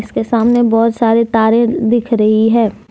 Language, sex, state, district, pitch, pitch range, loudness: Hindi, female, Jharkhand, Deoghar, 230 Hz, 220-235 Hz, -12 LUFS